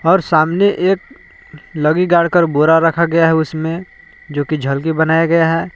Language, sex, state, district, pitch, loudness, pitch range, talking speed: Hindi, male, Jharkhand, Palamu, 165 Hz, -14 LUFS, 160-180 Hz, 175 wpm